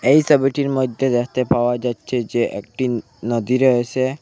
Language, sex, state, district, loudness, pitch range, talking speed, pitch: Bengali, male, Assam, Hailakandi, -19 LUFS, 120-135 Hz, 155 wpm, 125 Hz